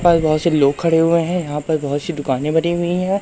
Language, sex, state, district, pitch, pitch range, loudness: Hindi, male, Madhya Pradesh, Umaria, 165 Hz, 150-170 Hz, -17 LUFS